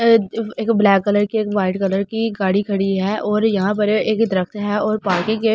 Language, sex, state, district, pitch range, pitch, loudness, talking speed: Hindi, female, Delhi, New Delhi, 195-220 Hz, 210 Hz, -18 LUFS, 225 wpm